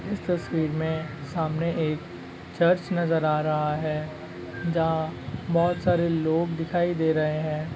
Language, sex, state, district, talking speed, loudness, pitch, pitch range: Hindi, male, Bihar, Sitamarhi, 140 wpm, -26 LUFS, 160 Hz, 155-170 Hz